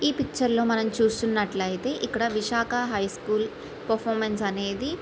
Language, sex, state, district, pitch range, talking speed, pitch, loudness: Telugu, female, Andhra Pradesh, Srikakulam, 210-235 Hz, 145 wpm, 225 Hz, -26 LUFS